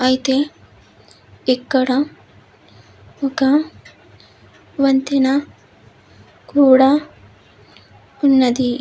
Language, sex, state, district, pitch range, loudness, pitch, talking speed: Telugu, female, Andhra Pradesh, Visakhapatnam, 250-275 Hz, -16 LUFS, 265 Hz, 40 wpm